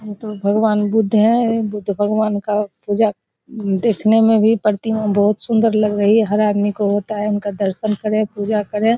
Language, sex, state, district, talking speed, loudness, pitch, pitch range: Hindi, female, Bihar, Begusarai, 185 wpm, -17 LUFS, 210 Hz, 205-220 Hz